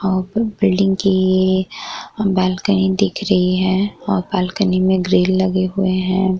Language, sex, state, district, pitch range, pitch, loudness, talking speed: Hindi, female, Bihar, Vaishali, 185-195 Hz, 190 Hz, -17 LUFS, 130 wpm